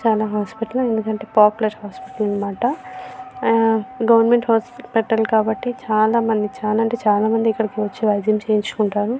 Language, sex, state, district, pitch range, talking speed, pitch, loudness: Telugu, female, Andhra Pradesh, Visakhapatnam, 210-235 Hz, 115 wpm, 220 Hz, -19 LUFS